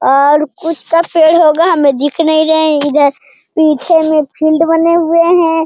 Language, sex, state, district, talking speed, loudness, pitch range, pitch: Hindi, female, Bihar, Jamui, 180 wpm, -10 LUFS, 295-330 Hz, 315 Hz